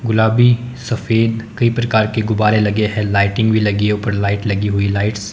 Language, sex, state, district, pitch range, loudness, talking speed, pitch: Hindi, male, Himachal Pradesh, Shimla, 105-115 Hz, -16 LUFS, 215 wpm, 110 Hz